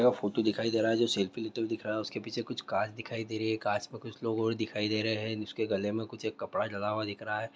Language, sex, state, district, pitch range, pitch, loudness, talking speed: Hindi, male, Bihar, Darbhanga, 105-115 Hz, 110 Hz, -33 LUFS, 285 wpm